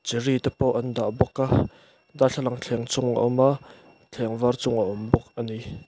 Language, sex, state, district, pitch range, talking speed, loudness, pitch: Mizo, male, Mizoram, Aizawl, 120-135 Hz, 195 wpm, -25 LUFS, 125 Hz